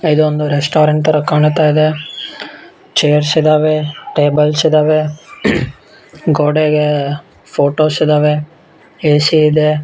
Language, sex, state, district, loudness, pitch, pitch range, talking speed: Kannada, male, Karnataka, Bellary, -13 LUFS, 150 Hz, 150-155 Hz, 85 wpm